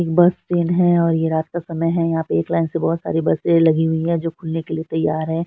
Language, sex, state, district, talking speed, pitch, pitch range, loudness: Hindi, female, Bihar, Saharsa, 295 wpm, 165 Hz, 160-170 Hz, -19 LUFS